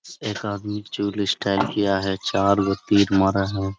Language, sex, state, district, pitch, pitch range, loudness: Hindi, male, Jharkhand, Sahebganj, 100 Hz, 95-100 Hz, -22 LUFS